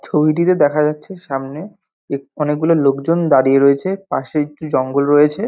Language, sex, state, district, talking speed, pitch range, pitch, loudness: Bengali, male, West Bengal, North 24 Parganas, 130 wpm, 140-165 Hz, 150 Hz, -16 LUFS